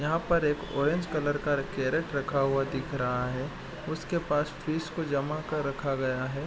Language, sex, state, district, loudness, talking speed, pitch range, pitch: Hindi, male, Bihar, East Champaran, -30 LUFS, 195 wpm, 135-155 Hz, 145 Hz